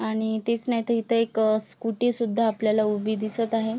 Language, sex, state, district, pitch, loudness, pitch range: Marathi, female, Maharashtra, Sindhudurg, 225 Hz, -25 LUFS, 220-230 Hz